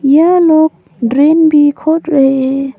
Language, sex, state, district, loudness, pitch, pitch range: Hindi, female, Arunachal Pradesh, Papum Pare, -10 LUFS, 295 Hz, 275-315 Hz